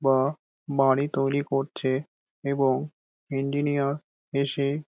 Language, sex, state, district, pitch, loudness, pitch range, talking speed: Bengali, male, West Bengal, Dakshin Dinajpur, 140 Hz, -27 LUFS, 135-145 Hz, 85 wpm